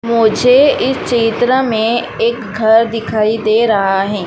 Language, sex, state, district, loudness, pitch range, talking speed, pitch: Hindi, female, Madhya Pradesh, Dhar, -13 LUFS, 220-235 Hz, 140 wpm, 225 Hz